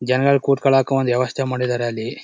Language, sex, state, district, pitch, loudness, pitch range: Kannada, male, Karnataka, Chamarajanagar, 130 Hz, -19 LUFS, 125-135 Hz